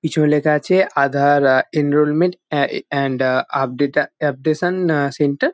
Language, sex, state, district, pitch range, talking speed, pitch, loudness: Bengali, male, West Bengal, Jalpaiguri, 140-155 Hz, 165 wpm, 150 Hz, -17 LUFS